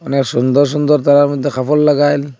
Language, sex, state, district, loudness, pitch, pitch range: Bengali, male, Assam, Hailakandi, -13 LUFS, 145 Hz, 140-150 Hz